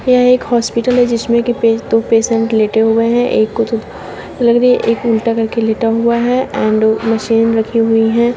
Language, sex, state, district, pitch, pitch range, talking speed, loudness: Hindi, female, Uttar Pradesh, Shamli, 230 Hz, 225-240 Hz, 200 wpm, -13 LUFS